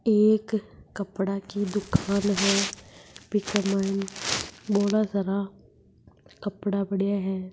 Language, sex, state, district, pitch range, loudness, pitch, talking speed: Marwari, female, Rajasthan, Nagaur, 195-205 Hz, -26 LUFS, 200 Hz, 95 wpm